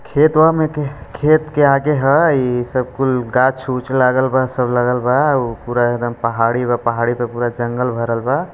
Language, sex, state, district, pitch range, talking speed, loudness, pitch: Hindi, male, Bihar, Gopalganj, 120-140 Hz, 175 wpm, -16 LUFS, 125 Hz